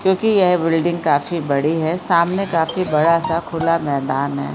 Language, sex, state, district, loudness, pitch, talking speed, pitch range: Hindi, female, Bihar, Supaul, -17 LUFS, 165 Hz, 160 wpm, 150-175 Hz